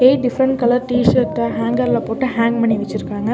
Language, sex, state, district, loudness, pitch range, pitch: Tamil, female, Tamil Nadu, Nilgiris, -17 LUFS, 205-250 Hz, 235 Hz